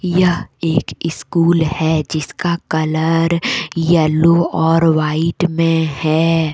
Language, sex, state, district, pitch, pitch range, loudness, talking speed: Hindi, female, Jharkhand, Deoghar, 165 Hz, 160-170 Hz, -16 LUFS, 100 wpm